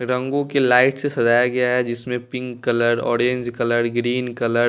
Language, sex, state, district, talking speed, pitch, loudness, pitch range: Hindi, male, Bihar, West Champaran, 190 wpm, 125 Hz, -20 LUFS, 120-125 Hz